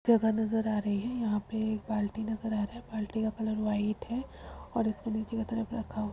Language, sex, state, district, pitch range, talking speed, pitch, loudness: Hindi, female, Uttar Pradesh, Jalaun, 215-225 Hz, 245 wpm, 220 Hz, -32 LUFS